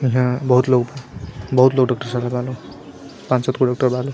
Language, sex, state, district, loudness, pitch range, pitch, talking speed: Bhojpuri, male, Bihar, Gopalganj, -18 LUFS, 125-130 Hz, 125 Hz, 220 wpm